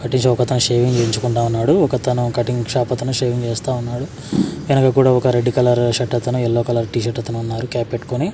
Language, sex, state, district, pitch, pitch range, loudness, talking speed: Telugu, male, Andhra Pradesh, Sri Satya Sai, 120 Hz, 120-125 Hz, -18 LUFS, 215 wpm